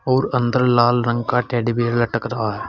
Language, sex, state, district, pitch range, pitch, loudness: Hindi, male, Uttar Pradesh, Saharanpur, 120-125 Hz, 120 Hz, -19 LUFS